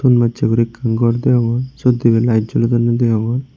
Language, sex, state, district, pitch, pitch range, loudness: Chakma, male, Tripura, Unakoti, 120 Hz, 115-125 Hz, -15 LUFS